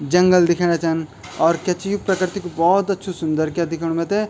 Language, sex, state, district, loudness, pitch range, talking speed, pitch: Garhwali, male, Uttarakhand, Tehri Garhwal, -19 LUFS, 165-190 Hz, 210 wpm, 175 Hz